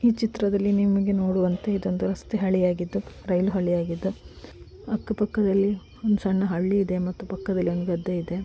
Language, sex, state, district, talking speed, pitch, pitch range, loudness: Kannada, female, Karnataka, Mysore, 140 wpm, 195 Hz, 180-205 Hz, -25 LUFS